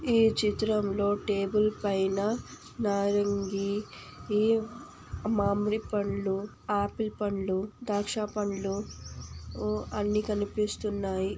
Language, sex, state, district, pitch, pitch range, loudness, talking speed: Telugu, female, Andhra Pradesh, Anantapur, 205 Hz, 195-210 Hz, -30 LUFS, 75 wpm